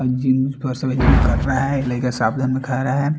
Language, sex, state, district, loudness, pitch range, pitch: Hindi, male, Bihar, Katihar, -19 LUFS, 125-135 Hz, 130 Hz